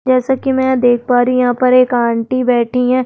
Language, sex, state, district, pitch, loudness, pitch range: Hindi, female, Chhattisgarh, Sukma, 250 Hz, -13 LUFS, 245-255 Hz